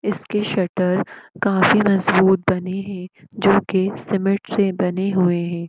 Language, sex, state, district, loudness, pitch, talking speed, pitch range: Hindi, female, Uttar Pradesh, Etah, -19 LUFS, 190 Hz, 125 wpm, 185-200 Hz